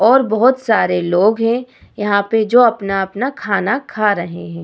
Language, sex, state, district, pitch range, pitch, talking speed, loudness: Hindi, female, Bihar, Vaishali, 195-245 Hz, 215 Hz, 180 wpm, -15 LUFS